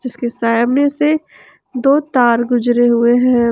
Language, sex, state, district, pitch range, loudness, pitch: Hindi, female, Jharkhand, Ranchi, 240-270 Hz, -14 LUFS, 245 Hz